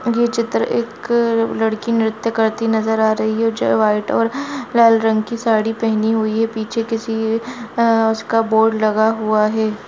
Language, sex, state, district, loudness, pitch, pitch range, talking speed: Hindi, female, Jharkhand, Jamtara, -17 LUFS, 225 Hz, 220-230 Hz, 170 wpm